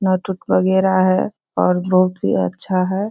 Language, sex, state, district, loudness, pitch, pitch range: Hindi, female, Bihar, Sitamarhi, -18 LUFS, 185 Hz, 180-190 Hz